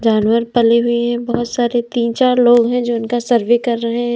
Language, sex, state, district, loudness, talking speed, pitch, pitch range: Hindi, female, Uttar Pradesh, Lalitpur, -15 LUFS, 230 wpm, 240 Hz, 235-240 Hz